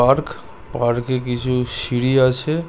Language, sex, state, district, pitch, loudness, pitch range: Bengali, male, West Bengal, Kolkata, 125 Hz, -16 LUFS, 120-130 Hz